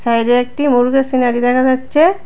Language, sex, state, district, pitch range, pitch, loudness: Bengali, female, Tripura, West Tripura, 245-270 Hz, 255 Hz, -14 LUFS